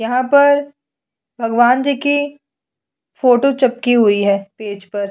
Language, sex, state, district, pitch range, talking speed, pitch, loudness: Hindi, female, Chhattisgarh, Sukma, 215-280 Hz, 130 wpm, 250 Hz, -15 LUFS